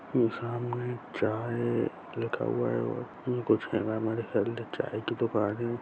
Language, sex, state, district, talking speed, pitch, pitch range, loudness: Hindi, male, Chhattisgarh, Sarguja, 135 wpm, 115 Hz, 110-120 Hz, -31 LUFS